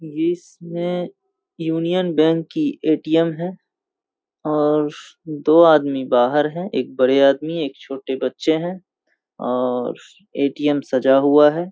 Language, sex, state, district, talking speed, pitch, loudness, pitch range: Hindi, male, Bihar, Saharsa, 125 wpm, 155 Hz, -19 LUFS, 140-175 Hz